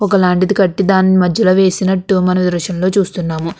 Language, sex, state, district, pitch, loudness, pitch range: Telugu, female, Andhra Pradesh, Krishna, 185 Hz, -13 LUFS, 180-190 Hz